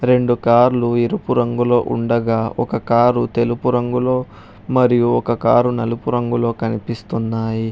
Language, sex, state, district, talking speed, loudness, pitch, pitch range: Telugu, male, Telangana, Hyderabad, 115 wpm, -17 LUFS, 120 Hz, 115-120 Hz